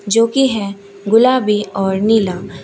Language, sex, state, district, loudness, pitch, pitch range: Hindi, female, Uttar Pradesh, Shamli, -15 LUFS, 210 Hz, 200-230 Hz